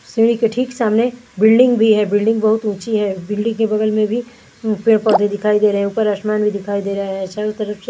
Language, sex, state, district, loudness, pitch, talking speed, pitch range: Hindi, female, Chandigarh, Chandigarh, -16 LUFS, 215 Hz, 260 wpm, 210-225 Hz